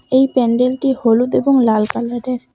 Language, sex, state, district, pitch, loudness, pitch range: Bengali, female, West Bengal, Cooch Behar, 250 Hz, -15 LUFS, 235-260 Hz